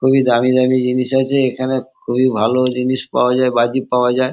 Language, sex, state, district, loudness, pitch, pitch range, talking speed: Bengali, male, West Bengal, Kolkata, -15 LUFS, 130 Hz, 125-130 Hz, 195 wpm